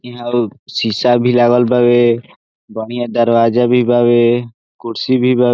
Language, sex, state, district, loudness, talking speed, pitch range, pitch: Bhojpuri, male, Bihar, Saran, -13 LUFS, 140 wpm, 115-120 Hz, 120 Hz